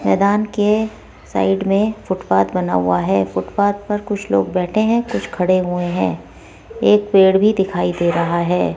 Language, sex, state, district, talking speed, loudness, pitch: Hindi, female, Rajasthan, Jaipur, 170 wpm, -17 LUFS, 185 Hz